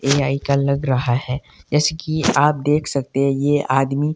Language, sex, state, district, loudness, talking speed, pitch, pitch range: Hindi, male, Himachal Pradesh, Shimla, -19 LUFS, 175 wpm, 140 Hz, 135-150 Hz